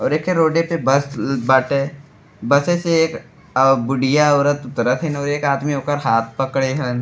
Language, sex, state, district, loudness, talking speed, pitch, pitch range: Bhojpuri, male, Uttar Pradesh, Deoria, -18 LUFS, 190 wpm, 140 Hz, 135-150 Hz